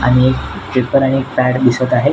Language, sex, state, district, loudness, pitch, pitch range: Marathi, male, Maharashtra, Nagpur, -14 LUFS, 130 Hz, 125-135 Hz